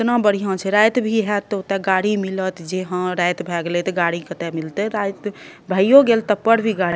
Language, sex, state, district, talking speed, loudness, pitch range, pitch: Maithili, female, Bihar, Madhepura, 235 wpm, -19 LUFS, 180-210 Hz, 195 Hz